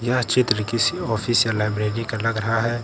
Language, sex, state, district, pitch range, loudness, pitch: Hindi, male, Uttar Pradesh, Lucknow, 110-120 Hz, -21 LUFS, 115 Hz